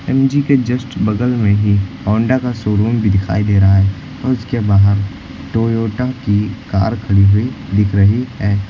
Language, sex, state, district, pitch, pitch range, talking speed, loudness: Hindi, male, Uttar Pradesh, Lucknow, 105 Hz, 100-125 Hz, 170 wpm, -15 LUFS